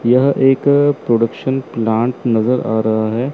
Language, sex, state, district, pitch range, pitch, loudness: Hindi, male, Chandigarh, Chandigarh, 115-135 Hz, 125 Hz, -15 LUFS